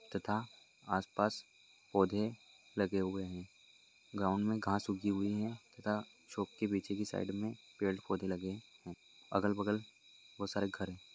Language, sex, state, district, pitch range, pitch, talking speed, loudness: Hindi, male, Maharashtra, Solapur, 95-105 Hz, 100 Hz, 145 wpm, -38 LUFS